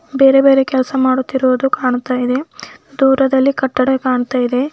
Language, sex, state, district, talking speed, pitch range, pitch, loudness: Kannada, female, Karnataka, Bidar, 100 wpm, 255-270 Hz, 265 Hz, -14 LUFS